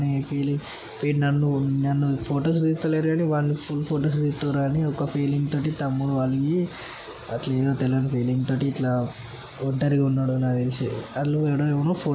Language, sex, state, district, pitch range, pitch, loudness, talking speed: Telugu, male, Telangana, Nalgonda, 130-145 Hz, 140 Hz, -24 LUFS, 125 wpm